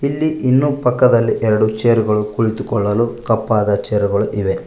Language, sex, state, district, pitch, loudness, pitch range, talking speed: Kannada, male, Karnataka, Koppal, 110 Hz, -16 LUFS, 105-125 Hz, 130 wpm